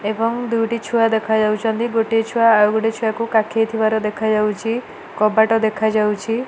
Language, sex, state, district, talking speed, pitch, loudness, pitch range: Odia, female, Odisha, Malkangiri, 155 wpm, 220 Hz, -18 LUFS, 215-225 Hz